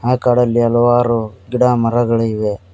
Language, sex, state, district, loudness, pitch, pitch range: Kannada, male, Karnataka, Koppal, -15 LUFS, 120 Hz, 115-120 Hz